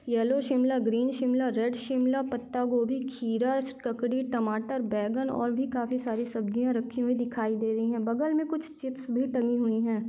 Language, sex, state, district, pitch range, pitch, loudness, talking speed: Hindi, female, Maharashtra, Dhule, 230-260 Hz, 245 Hz, -29 LUFS, 185 wpm